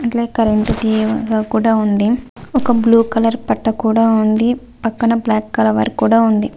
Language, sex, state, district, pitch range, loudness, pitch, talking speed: Telugu, female, Andhra Pradesh, Visakhapatnam, 220-235 Hz, -15 LUFS, 225 Hz, 135 wpm